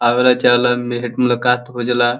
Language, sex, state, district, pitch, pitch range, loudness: Bhojpuri, male, Uttar Pradesh, Deoria, 125 Hz, 120-125 Hz, -16 LUFS